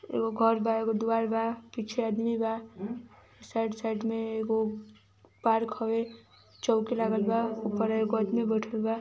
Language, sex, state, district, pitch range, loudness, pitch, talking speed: Hindi, female, Uttar Pradesh, Ghazipur, 220-230 Hz, -30 LUFS, 225 Hz, 145 wpm